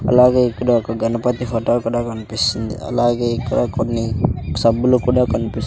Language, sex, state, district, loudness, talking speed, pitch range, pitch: Telugu, male, Andhra Pradesh, Sri Satya Sai, -18 LUFS, 135 wpm, 115-125 Hz, 120 Hz